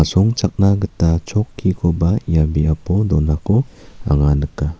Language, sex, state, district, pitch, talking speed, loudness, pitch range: Garo, male, Meghalaya, South Garo Hills, 85 Hz, 85 wpm, -17 LUFS, 75-100 Hz